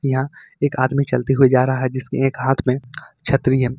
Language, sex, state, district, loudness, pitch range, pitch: Hindi, male, Jharkhand, Ranchi, -18 LUFS, 130-135 Hz, 130 Hz